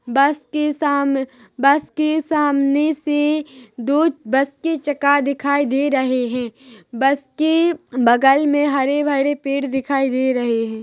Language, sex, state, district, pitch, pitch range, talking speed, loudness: Hindi, female, Chhattisgarh, Rajnandgaon, 280 Hz, 260-295 Hz, 140 wpm, -18 LUFS